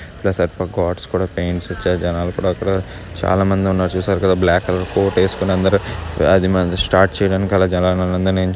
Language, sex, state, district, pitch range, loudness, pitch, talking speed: Telugu, male, Andhra Pradesh, Chittoor, 90-95 Hz, -17 LUFS, 95 Hz, 180 wpm